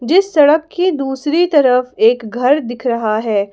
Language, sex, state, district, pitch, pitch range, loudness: Hindi, female, Jharkhand, Palamu, 265 Hz, 235-305 Hz, -14 LUFS